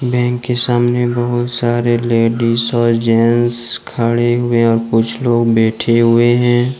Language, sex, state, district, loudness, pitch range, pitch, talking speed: Hindi, male, Jharkhand, Deoghar, -14 LUFS, 115-120 Hz, 120 Hz, 140 wpm